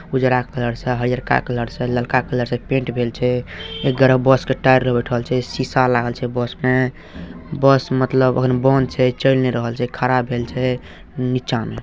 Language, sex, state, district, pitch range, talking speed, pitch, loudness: Hindi, male, Bihar, Saharsa, 120-130 Hz, 205 wpm, 125 Hz, -18 LUFS